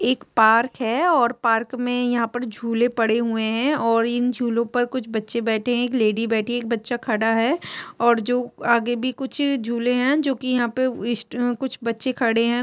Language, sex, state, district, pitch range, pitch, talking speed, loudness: Hindi, female, Jharkhand, Jamtara, 230-250 Hz, 240 Hz, 215 wpm, -21 LUFS